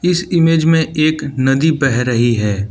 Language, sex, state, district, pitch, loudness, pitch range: Hindi, male, Arunachal Pradesh, Lower Dibang Valley, 150 Hz, -14 LUFS, 125-160 Hz